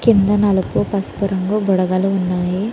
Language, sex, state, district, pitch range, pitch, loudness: Telugu, female, Andhra Pradesh, Chittoor, 185-205 Hz, 195 Hz, -17 LUFS